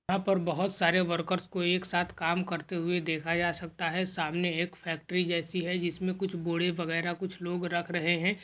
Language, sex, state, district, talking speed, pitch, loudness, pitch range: Hindi, male, Maharashtra, Dhule, 190 wpm, 175 Hz, -30 LUFS, 170-180 Hz